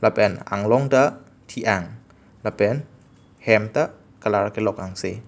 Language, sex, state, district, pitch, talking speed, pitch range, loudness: Karbi, male, Assam, Karbi Anglong, 110 Hz, 115 wpm, 100-130 Hz, -22 LUFS